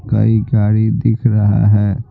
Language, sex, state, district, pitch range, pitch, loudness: Hindi, male, Bihar, Patna, 105-115 Hz, 110 Hz, -14 LUFS